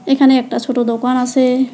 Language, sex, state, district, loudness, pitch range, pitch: Bengali, female, West Bengal, Alipurduar, -14 LUFS, 250-265 Hz, 255 Hz